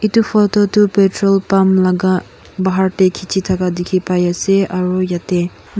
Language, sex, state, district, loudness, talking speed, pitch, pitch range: Nagamese, female, Nagaland, Kohima, -15 LUFS, 165 wpm, 190 Hz, 185-195 Hz